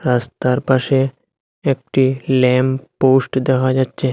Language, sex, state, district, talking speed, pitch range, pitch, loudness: Bengali, male, Assam, Hailakandi, 100 wpm, 130-135 Hz, 130 Hz, -17 LUFS